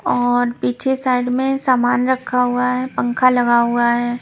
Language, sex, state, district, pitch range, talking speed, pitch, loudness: Hindi, female, Punjab, Pathankot, 245-255 Hz, 170 wpm, 250 Hz, -17 LUFS